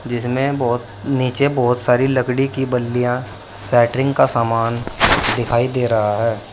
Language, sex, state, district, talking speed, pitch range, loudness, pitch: Hindi, male, Uttar Pradesh, Saharanpur, 140 wpm, 115-130 Hz, -17 LUFS, 120 Hz